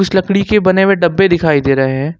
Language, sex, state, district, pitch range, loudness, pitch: Hindi, male, Jharkhand, Ranchi, 150-195 Hz, -12 LUFS, 185 Hz